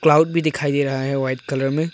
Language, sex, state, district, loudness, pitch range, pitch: Hindi, male, Arunachal Pradesh, Longding, -20 LUFS, 135-155 Hz, 145 Hz